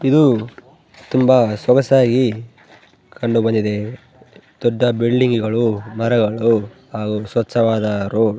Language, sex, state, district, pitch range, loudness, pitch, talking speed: Kannada, male, Karnataka, Bellary, 110-125 Hz, -17 LUFS, 115 Hz, 85 wpm